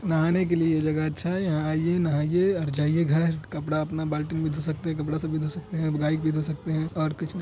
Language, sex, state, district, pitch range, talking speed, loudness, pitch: Hindi, male, Bihar, Madhepura, 155-165 Hz, 265 wpm, -26 LUFS, 155 Hz